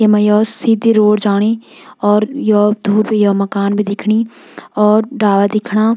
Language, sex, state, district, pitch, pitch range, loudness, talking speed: Garhwali, female, Uttarakhand, Tehri Garhwal, 210 Hz, 205-220 Hz, -13 LUFS, 150 wpm